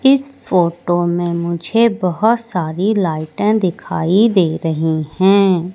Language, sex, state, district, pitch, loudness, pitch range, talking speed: Hindi, female, Madhya Pradesh, Katni, 180 Hz, -16 LUFS, 170-210 Hz, 115 wpm